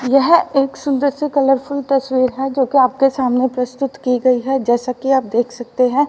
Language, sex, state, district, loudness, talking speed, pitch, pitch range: Hindi, female, Haryana, Rohtak, -16 LUFS, 205 wpm, 265 Hz, 250-275 Hz